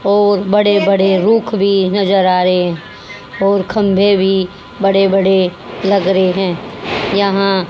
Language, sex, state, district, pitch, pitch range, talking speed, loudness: Hindi, female, Haryana, Jhajjar, 195 Hz, 190-200 Hz, 135 wpm, -13 LUFS